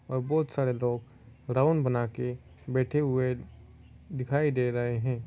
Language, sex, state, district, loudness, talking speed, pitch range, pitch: Hindi, male, Uttar Pradesh, Varanasi, -29 LUFS, 150 wpm, 120-130 Hz, 125 Hz